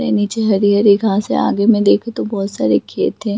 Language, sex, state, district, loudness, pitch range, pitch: Hindi, female, Jharkhand, Sahebganj, -15 LUFS, 200-215 Hz, 205 Hz